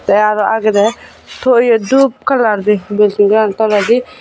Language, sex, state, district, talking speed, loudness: Chakma, female, Tripura, Unakoti, 155 wpm, -12 LUFS